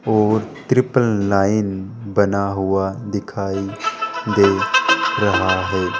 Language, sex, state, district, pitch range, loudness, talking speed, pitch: Hindi, male, Rajasthan, Jaipur, 95-120 Hz, -18 LUFS, 90 wpm, 100 Hz